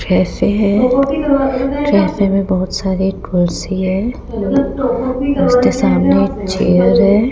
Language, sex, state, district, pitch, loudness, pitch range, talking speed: Hindi, female, Rajasthan, Jaipur, 200 Hz, -14 LUFS, 185-255 Hz, 100 wpm